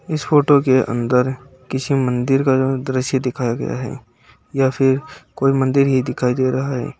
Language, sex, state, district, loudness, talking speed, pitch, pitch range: Hindi, male, Bihar, Saran, -18 LUFS, 170 wpm, 130 Hz, 130-135 Hz